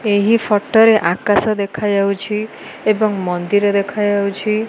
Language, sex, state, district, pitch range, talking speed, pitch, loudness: Odia, female, Odisha, Malkangiri, 200-215 Hz, 90 wpm, 205 Hz, -16 LUFS